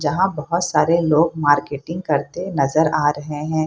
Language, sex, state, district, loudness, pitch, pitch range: Hindi, female, Bihar, Purnia, -19 LUFS, 155 Hz, 145-170 Hz